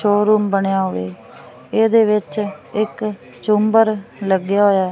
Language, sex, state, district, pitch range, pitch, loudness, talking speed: Punjabi, female, Punjab, Fazilka, 195-215 Hz, 205 Hz, -17 LUFS, 120 wpm